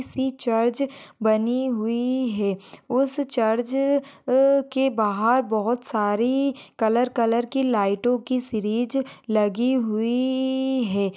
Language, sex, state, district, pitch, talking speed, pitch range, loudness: Hindi, female, Maharashtra, Sindhudurg, 245 Hz, 115 wpm, 220-265 Hz, -23 LUFS